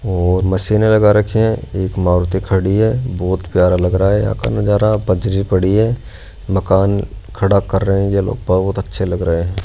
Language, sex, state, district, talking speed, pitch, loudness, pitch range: Hindi, male, Rajasthan, Jaipur, 195 wpm, 95 Hz, -15 LUFS, 95-105 Hz